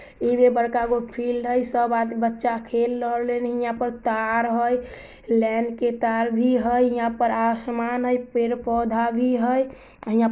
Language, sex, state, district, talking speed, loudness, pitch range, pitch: Maithili, female, Bihar, Samastipur, 155 wpm, -23 LUFS, 230-245 Hz, 240 Hz